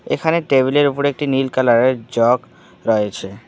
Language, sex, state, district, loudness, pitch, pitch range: Bengali, male, West Bengal, Alipurduar, -17 LUFS, 130 Hz, 115-140 Hz